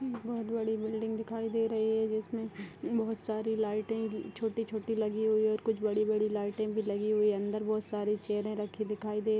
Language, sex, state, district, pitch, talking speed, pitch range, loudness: Hindi, female, Chhattisgarh, Jashpur, 215 Hz, 190 wpm, 210-225 Hz, -33 LUFS